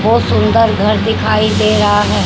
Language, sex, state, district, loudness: Hindi, female, Haryana, Charkhi Dadri, -12 LUFS